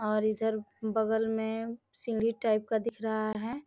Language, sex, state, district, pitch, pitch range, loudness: Hindi, female, Bihar, Gopalganj, 220 Hz, 215-230 Hz, -32 LUFS